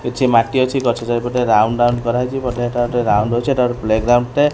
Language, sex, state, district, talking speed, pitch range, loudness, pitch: Odia, female, Odisha, Khordha, 225 wpm, 115-125 Hz, -16 LUFS, 120 Hz